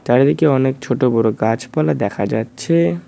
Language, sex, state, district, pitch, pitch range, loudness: Bengali, male, West Bengal, Cooch Behar, 125 Hz, 110-135 Hz, -17 LUFS